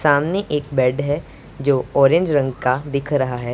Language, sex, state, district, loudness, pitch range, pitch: Hindi, male, Punjab, Pathankot, -19 LUFS, 130-145 Hz, 140 Hz